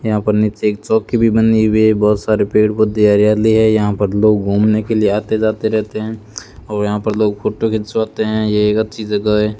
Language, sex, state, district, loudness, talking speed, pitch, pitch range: Hindi, male, Rajasthan, Bikaner, -15 LUFS, 220 wpm, 110 Hz, 105-110 Hz